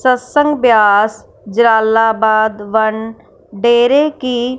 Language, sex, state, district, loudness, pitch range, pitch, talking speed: Hindi, female, Punjab, Fazilka, -12 LUFS, 220-250 Hz, 225 Hz, 80 wpm